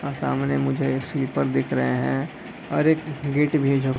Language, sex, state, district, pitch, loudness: Hindi, male, Bihar, East Champaran, 130 Hz, -23 LUFS